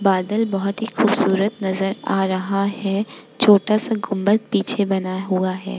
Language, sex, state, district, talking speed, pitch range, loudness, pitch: Hindi, female, Bihar, Vaishali, 145 wpm, 190-215 Hz, -19 LUFS, 195 Hz